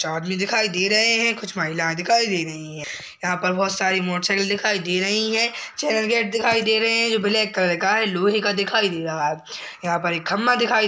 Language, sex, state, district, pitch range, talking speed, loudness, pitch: Hindi, female, Uttar Pradesh, Hamirpur, 180-220 Hz, 250 wpm, -20 LUFS, 200 Hz